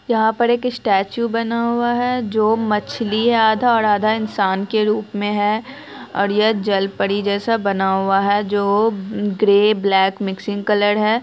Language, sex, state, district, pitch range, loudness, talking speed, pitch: Hindi, female, Bihar, Saharsa, 200-225 Hz, -18 LUFS, 170 wpm, 210 Hz